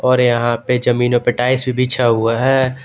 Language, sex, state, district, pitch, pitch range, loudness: Hindi, male, Jharkhand, Garhwa, 125 Hz, 120-125 Hz, -15 LUFS